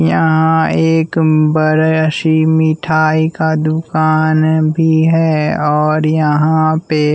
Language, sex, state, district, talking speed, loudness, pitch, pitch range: Hindi, male, Bihar, West Champaran, 100 wpm, -12 LUFS, 155 Hz, 155-160 Hz